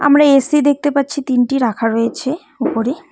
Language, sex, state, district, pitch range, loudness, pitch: Bengali, female, West Bengal, Cooch Behar, 250-290 Hz, -15 LUFS, 275 Hz